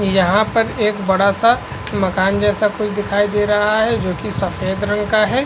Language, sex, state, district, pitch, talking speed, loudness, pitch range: Hindi, male, Uttar Pradesh, Varanasi, 205 Hz, 185 wpm, -17 LUFS, 200-215 Hz